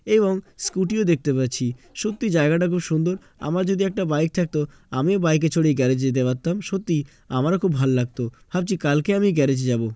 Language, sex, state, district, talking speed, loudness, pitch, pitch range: Bengali, male, West Bengal, Jalpaiguri, 195 wpm, -22 LUFS, 160 Hz, 135-190 Hz